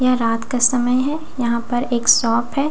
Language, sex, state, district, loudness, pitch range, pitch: Hindi, female, Bihar, Katihar, -18 LUFS, 235-260 Hz, 245 Hz